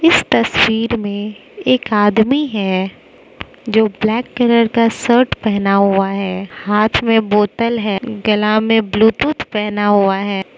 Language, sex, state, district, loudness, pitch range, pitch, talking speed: Hindi, female, Mizoram, Aizawl, -15 LUFS, 205-230 Hz, 215 Hz, 135 wpm